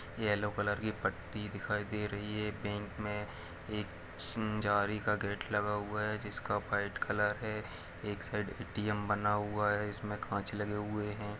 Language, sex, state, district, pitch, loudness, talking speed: Hindi, male, Chhattisgarh, Bilaspur, 105 Hz, -36 LUFS, 165 wpm